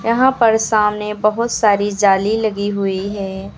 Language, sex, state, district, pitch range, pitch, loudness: Hindi, female, Uttar Pradesh, Lucknow, 200-225 Hz, 210 Hz, -16 LUFS